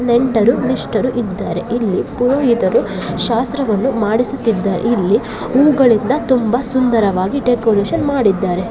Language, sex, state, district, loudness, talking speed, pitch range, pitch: Kannada, female, Karnataka, Shimoga, -15 LUFS, 90 wpm, 205-255 Hz, 235 Hz